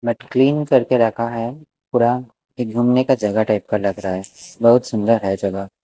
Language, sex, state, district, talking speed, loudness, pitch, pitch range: Hindi, male, Maharashtra, Mumbai Suburban, 195 wpm, -18 LUFS, 115 Hz, 105-125 Hz